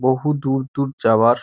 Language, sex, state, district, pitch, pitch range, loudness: Bengali, male, West Bengal, Dakshin Dinajpur, 135 Hz, 125-140 Hz, -19 LUFS